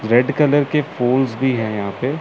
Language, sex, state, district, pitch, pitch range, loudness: Hindi, male, Chandigarh, Chandigarh, 130 Hz, 115-145 Hz, -18 LUFS